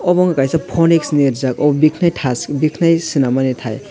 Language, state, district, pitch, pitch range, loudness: Kokborok, Tripura, West Tripura, 150 Hz, 135-165 Hz, -15 LUFS